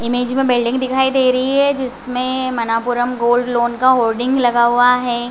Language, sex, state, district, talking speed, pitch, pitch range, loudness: Hindi, female, Chhattisgarh, Raigarh, 180 wpm, 245 Hz, 240-260 Hz, -16 LUFS